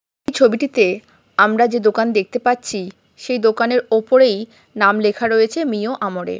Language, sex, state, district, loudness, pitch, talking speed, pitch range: Bengali, female, West Bengal, Kolkata, -17 LUFS, 225 Hz, 150 wpm, 210-245 Hz